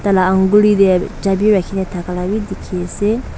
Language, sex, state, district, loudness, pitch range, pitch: Nagamese, female, Nagaland, Dimapur, -15 LUFS, 185-205 Hz, 195 Hz